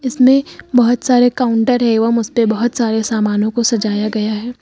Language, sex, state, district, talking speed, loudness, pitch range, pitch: Hindi, female, Uttar Pradesh, Lucknow, 180 wpm, -15 LUFS, 220-245 Hz, 235 Hz